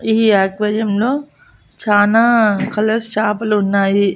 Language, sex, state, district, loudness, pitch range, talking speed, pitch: Telugu, female, Andhra Pradesh, Annamaya, -15 LUFS, 205-225 Hz, 85 wpm, 215 Hz